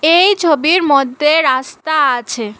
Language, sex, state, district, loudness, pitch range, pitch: Bengali, female, Assam, Hailakandi, -13 LUFS, 260-325 Hz, 300 Hz